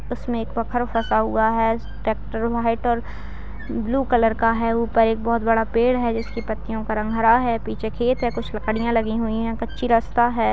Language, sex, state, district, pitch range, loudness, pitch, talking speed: Hindi, female, Bihar, Jamui, 225-235 Hz, -22 LUFS, 230 Hz, 205 wpm